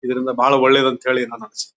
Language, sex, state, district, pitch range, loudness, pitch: Kannada, male, Karnataka, Bijapur, 125-130 Hz, -17 LUFS, 130 Hz